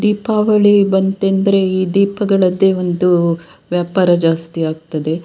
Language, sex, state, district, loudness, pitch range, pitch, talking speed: Kannada, female, Karnataka, Dakshina Kannada, -14 LUFS, 170-200 Hz, 185 Hz, 90 wpm